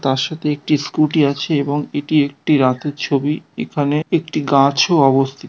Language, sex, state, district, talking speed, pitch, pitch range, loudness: Bengali, male, West Bengal, North 24 Parganas, 155 wpm, 145 Hz, 140-155 Hz, -17 LUFS